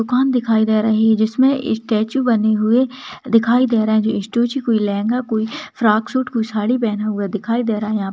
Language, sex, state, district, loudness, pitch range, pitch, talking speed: Hindi, female, Rajasthan, Churu, -17 LUFS, 215-245 Hz, 225 Hz, 215 wpm